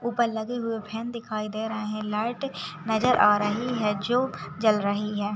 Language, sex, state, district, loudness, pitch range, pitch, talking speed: Hindi, female, Uttar Pradesh, Muzaffarnagar, -26 LUFS, 210-235 Hz, 215 Hz, 180 wpm